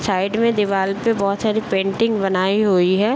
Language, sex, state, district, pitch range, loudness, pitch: Hindi, male, Bihar, Bhagalpur, 195-220 Hz, -18 LUFS, 200 Hz